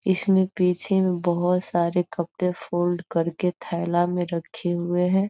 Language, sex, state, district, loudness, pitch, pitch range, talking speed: Hindi, female, Bihar, Gopalganj, -24 LUFS, 180 Hz, 175-185 Hz, 145 wpm